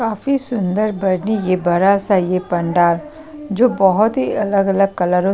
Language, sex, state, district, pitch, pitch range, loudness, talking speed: Hindi, female, Chhattisgarh, Sukma, 195 Hz, 185-220 Hz, -16 LUFS, 155 wpm